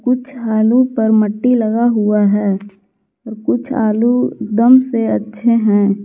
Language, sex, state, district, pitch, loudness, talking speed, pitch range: Hindi, female, Jharkhand, Garhwa, 220 Hz, -14 LUFS, 130 wpm, 210-240 Hz